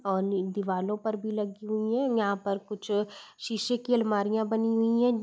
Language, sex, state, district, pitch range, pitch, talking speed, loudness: Hindi, female, Uttar Pradesh, Deoria, 200-225 Hz, 215 Hz, 185 wpm, -29 LUFS